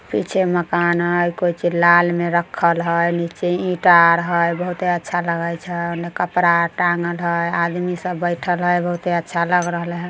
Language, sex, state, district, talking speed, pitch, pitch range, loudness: Maithili, female, Bihar, Samastipur, 180 wpm, 175 Hz, 170-175 Hz, -18 LUFS